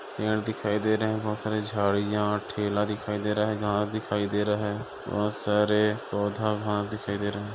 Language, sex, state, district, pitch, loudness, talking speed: Hindi, male, Jharkhand, Sahebganj, 105 Hz, -28 LUFS, 205 wpm